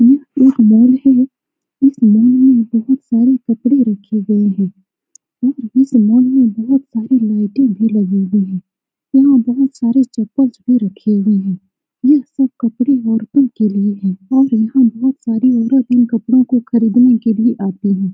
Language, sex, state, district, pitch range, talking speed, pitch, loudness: Hindi, female, Bihar, Saran, 215-260 Hz, 170 wpm, 235 Hz, -13 LUFS